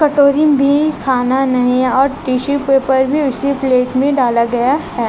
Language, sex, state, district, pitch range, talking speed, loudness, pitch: Hindi, female, Chhattisgarh, Raipur, 255-280 Hz, 165 wpm, -14 LUFS, 270 Hz